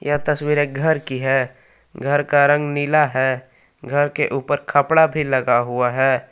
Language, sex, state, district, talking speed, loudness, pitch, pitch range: Hindi, male, Jharkhand, Palamu, 180 wpm, -19 LUFS, 145 Hz, 130-145 Hz